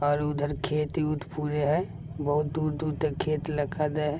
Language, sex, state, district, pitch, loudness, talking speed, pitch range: Maithili, male, Bihar, Begusarai, 150 Hz, -29 LUFS, 185 wpm, 145-150 Hz